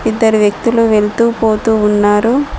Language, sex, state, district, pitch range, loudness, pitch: Telugu, female, Telangana, Mahabubabad, 210-230 Hz, -12 LUFS, 220 Hz